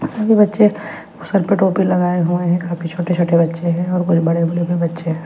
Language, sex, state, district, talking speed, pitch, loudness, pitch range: Hindi, female, Bihar, Patna, 205 wpm, 175 Hz, -16 LUFS, 170-190 Hz